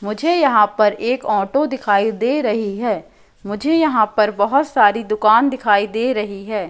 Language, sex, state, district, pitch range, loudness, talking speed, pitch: Hindi, female, Madhya Pradesh, Katni, 210-260 Hz, -17 LUFS, 170 wpm, 215 Hz